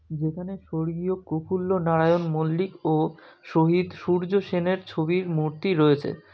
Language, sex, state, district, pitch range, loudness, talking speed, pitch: Bengali, male, West Bengal, North 24 Parganas, 160-185 Hz, -25 LUFS, 130 wpm, 175 Hz